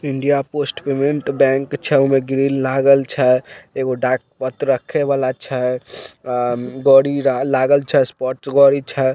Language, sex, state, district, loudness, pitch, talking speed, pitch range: Maithili, male, Bihar, Samastipur, -17 LUFS, 135 Hz, 130 wpm, 130-140 Hz